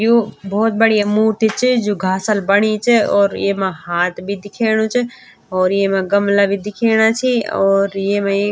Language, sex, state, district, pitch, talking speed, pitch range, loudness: Garhwali, female, Uttarakhand, Tehri Garhwal, 205 Hz, 175 wpm, 195-220 Hz, -16 LUFS